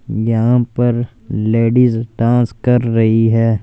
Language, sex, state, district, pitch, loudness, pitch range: Hindi, male, Punjab, Fazilka, 115 Hz, -15 LUFS, 115-120 Hz